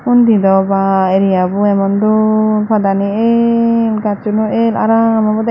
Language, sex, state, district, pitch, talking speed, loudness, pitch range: Chakma, female, Tripura, Dhalai, 215 Hz, 130 wpm, -12 LUFS, 195-225 Hz